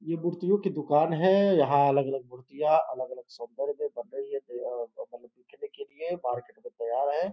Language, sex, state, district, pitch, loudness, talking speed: Hindi, male, Uttar Pradesh, Gorakhpur, 200 Hz, -28 LUFS, 195 wpm